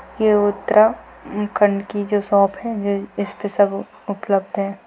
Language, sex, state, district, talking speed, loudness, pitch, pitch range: Hindi, female, Uttarakhand, Uttarkashi, 150 wpm, -19 LUFS, 205 Hz, 200-210 Hz